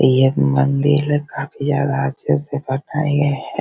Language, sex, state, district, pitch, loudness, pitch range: Hindi, male, Bihar, Begusarai, 140 Hz, -18 LUFS, 130-145 Hz